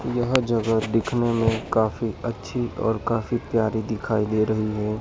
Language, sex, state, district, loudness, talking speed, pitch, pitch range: Hindi, male, Madhya Pradesh, Dhar, -24 LUFS, 155 wpm, 110 Hz, 110-120 Hz